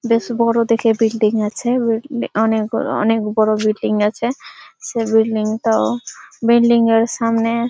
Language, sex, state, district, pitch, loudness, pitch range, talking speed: Bengali, female, West Bengal, Malda, 225 Hz, -17 LUFS, 220-235 Hz, 150 wpm